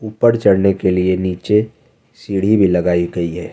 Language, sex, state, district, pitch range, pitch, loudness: Hindi, male, Jharkhand, Ranchi, 90-110 Hz, 95 Hz, -15 LUFS